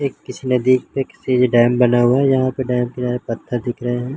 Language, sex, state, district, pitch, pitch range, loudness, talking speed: Hindi, male, Jharkhand, Jamtara, 125 Hz, 120-130 Hz, -18 LUFS, 260 wpm